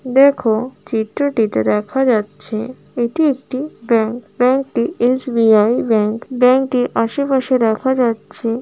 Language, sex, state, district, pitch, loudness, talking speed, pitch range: Bengali, female, West Bengal, Jalpaiguri, 240 Hz, -16 LUFS, 125 wpm, 220-260 Hz